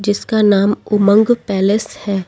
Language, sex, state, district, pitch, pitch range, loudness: Hindi, female, Delhi, New Delhi, 205 Hz, 200-215 Hz, -14 LUFS